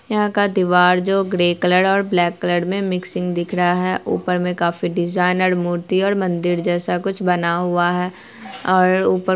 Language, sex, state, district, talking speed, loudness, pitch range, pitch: Hindi, female, Bihar, Araria, 180 wpm, -18 LUFS, 175-185 Hz, 180 Hz